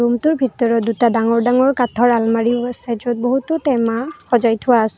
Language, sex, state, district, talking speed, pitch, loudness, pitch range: Assamese, female, Assam, Kamrup Metropolitan, 170 wpm, 240 Hz, -17 LUFS, 230-250 Hz